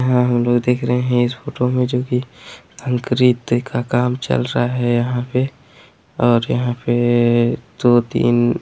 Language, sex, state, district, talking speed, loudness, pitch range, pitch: Hindi, male, Chhattisgarh, Raigarh, 160 wpm, -18 LUFS, 120-125 Hz, 125 Hz